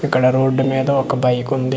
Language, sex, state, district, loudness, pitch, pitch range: Telugu, male, Andhra Pradesh, Manyam, -17 LUFS, 135 Hz, 130-135 Hz